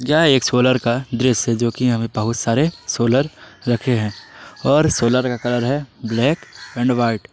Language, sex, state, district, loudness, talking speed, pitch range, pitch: Hindi, male, Jharkhand, Palamu, -18 LUFS, 190 wpm, 115-130 Hz, 120 Hz